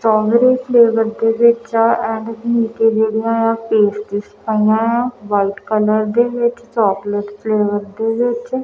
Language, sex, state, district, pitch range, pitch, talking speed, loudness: Punjabi, female, Punjab, Kapurthala, 210-235 Hz, 225 Hz, 95 wpm, -16 LUFS